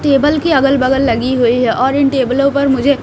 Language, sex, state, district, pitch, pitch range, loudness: Hindi, female, Haryana, Rohtak, 270 Hz, 255-280 Hz, -13 LUFS